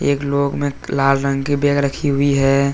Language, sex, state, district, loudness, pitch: Hindi, male, Jharkhand, Deoghar, -17 LUFS, 140 Hz